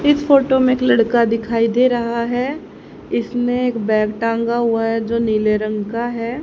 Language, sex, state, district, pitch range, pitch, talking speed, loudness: Hindi, female, Haryana, Jhajjar, 225-250 Hz, 235 Hz, 185 wpm, -17 LUFS